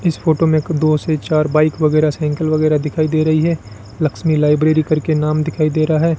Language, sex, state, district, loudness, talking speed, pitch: Hindi, male, Rajasthan, Bikaner, -16 LUFS, 225 wpm, 155 Hz